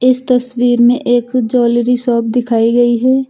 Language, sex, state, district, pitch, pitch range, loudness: Hindi, female, Uttar Pradesh, Lucknow, 245 Hz, 240-250 Hz, -12 LUFS